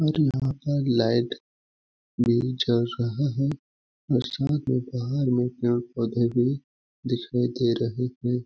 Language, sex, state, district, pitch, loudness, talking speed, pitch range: Hindi, male, Chhattisgarh, Balrampur, 125 Hz, -26 LUFS, 140 wpm, 120-135 Hz